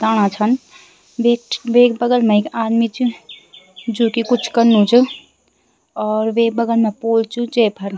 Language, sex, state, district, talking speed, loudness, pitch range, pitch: Garhwali, female, Uttarakhand, Tehri Garhwal, 165 wpm, -16 LUFS, 220-240 Hz, 230 Hz